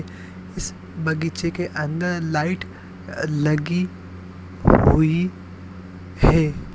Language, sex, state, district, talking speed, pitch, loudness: Hindi, male, Uttar Pradesh, Varanasi, 80 wpm, 150 Hz, -21 LUFS